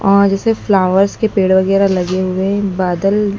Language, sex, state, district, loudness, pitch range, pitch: Hindi, female, Madhya Pradesh, Dhar, -14 LUFS, 190-200 Hz, 195 Hz